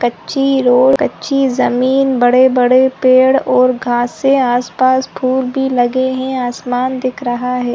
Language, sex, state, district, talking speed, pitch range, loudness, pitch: Hindi, female, Chhattisgarh, Sarguja, 130 wpm, 245-265 Hz, -13 LUFS, 255 Hz